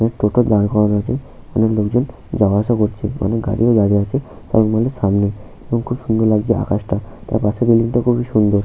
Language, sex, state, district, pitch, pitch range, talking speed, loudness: Bengali, male, West Bengal, Paschim Medinipur, 110 Hz, 105-120 Hz, 180 wpm, -17 LUFS